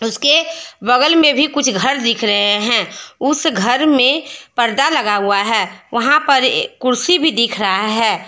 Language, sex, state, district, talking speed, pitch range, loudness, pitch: Hindi, female, Jharkhand, Deoghar, 165 wpm, 225-305 Hz, -14 LUFS, 255 Hz